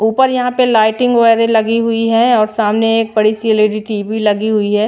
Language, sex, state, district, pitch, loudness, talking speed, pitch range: Hindi, female, Bihar, Patna, 220 Hz, -13 LUFS, 220 wpm, 215-230 Hz